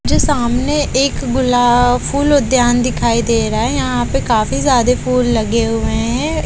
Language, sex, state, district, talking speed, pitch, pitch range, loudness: Hindi, female, Haryana, Jhajjar, 165 wpm, 245 Hz, 235-260 Hz, -14 LUFS